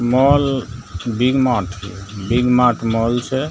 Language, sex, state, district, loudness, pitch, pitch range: Maithili, male, Bihar, Begusarai, -17 LUFS, 120 Hz, 115-130 Hz